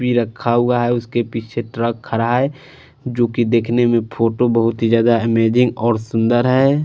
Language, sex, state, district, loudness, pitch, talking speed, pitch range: Hindi, male, Punjab, Fazilka, -17 LUFS, 120 Hz, 185 wpm, 115-120 Hz